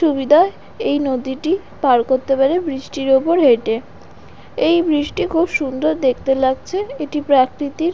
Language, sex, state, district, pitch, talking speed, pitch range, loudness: Bengali, female, West Bengal, Dakshin Dinajpur, 285 Hz, 145 wpm, 265-325 Hz, -17 LUFS